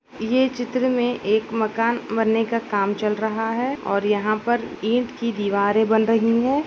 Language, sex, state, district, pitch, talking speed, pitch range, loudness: Hindi, female, Uttar Pradesh, Gorakhpur, 225 Hz, 190 wpm, 215-240 Hz, -21 LUFS